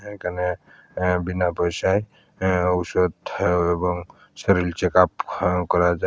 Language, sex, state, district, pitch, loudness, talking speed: Bengali, male, Tripura, Unakoti, 90 Hz, -22 LUFS, 100 wpm